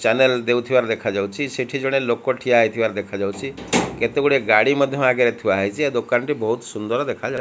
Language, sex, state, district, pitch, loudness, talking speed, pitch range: Odia, male, Odisha, Malkangiri, 120 Hz, -20 LUFS, 180 wpm, 110-135 Hz